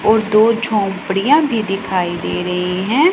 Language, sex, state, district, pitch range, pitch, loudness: Hindi, female, Punjab, Pathankot, 190-225 Hz, 205 Hz, -16 LUFS